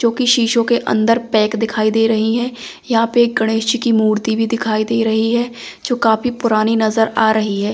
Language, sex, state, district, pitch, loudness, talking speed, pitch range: Hindi, female, Delhi, New Delhi, 225 Hz, -16 LUFS, 215 wpm, 220-235 Hz